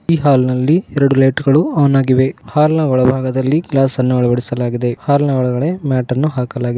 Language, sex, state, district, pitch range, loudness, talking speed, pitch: Kannada, male, Karnataka, Koppal, 125-145 Hz, -14 LUFS, 150 wpm, 135 Hz